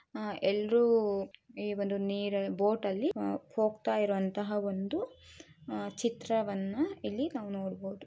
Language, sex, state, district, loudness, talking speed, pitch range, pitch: Kannada, female, Karnataka, Shimoga, -33 LUFS, 110 wpm, 200-225 Hz, 205 Hz